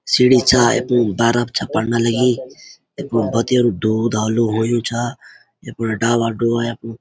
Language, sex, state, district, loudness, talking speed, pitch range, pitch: Garhwali, male, Uttarakhand, Uttarkashi, -17 LUFS, 135 wpm, 115-120 Hz, 115 Hz